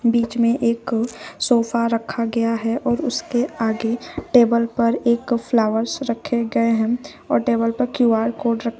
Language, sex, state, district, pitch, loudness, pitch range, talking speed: Hindi, female, Uttar Pradesh, Shamli, 235 Hz, -20 LUFS, 230-240 Hz, 165 wpm